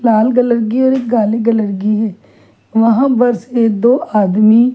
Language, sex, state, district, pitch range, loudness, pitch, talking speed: Hindi, female, Chhattisgarh, Kabirdham, 215-245 Hz, -13 LUFS, 230 Hz, 175 wpm